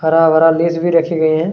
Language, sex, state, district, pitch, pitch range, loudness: Hindi, male, Chhattisgarh, Kabirdham, 165 Hz, 160-170 Hz, -13 LUFS